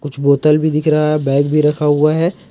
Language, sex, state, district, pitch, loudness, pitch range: Hindi, male, Jharkhand, Ranchi, 150 Hz, -14 LUFS, 145-155 Hz